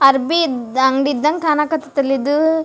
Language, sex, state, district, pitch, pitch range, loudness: Kannada, female, Karnataka, Dharwad, 290 Hz, 270-315 Hz, -17 LUFS